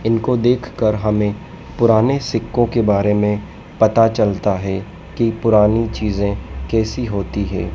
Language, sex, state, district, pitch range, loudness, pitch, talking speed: Hindi, male, Madhya Pradesh, Dhar, 100-115 Hz, -17 LUFS, 110 Hz, 140 wpm